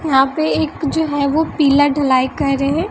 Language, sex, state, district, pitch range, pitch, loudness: Hindi, female, Bihar, West Champaran, 275-310 Hz, 290 Hz, -16 LUFS